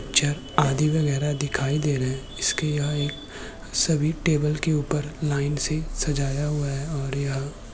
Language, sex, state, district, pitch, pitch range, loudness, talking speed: Hindi, male, Uttar Pradesh, Muzaffarnagar, 145 Hz, 140-150 Hz, -25 LUFS, 170 wpm